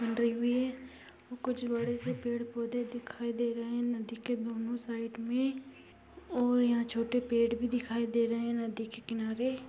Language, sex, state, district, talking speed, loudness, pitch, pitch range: Hindi, female, Maharashtra, Chandrapur, 185 wpm, -34 LUFS, 235 Hz, 230-245 Hz